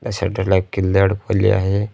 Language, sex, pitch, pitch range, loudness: Marathi, male, 95 Hz, 95-100 Hz, -18 LUFS